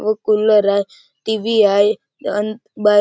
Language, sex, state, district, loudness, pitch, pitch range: Marathi, male, Maharashtra, Chandrapur, -17 LUFS, 210 Hz, 205-220 Hz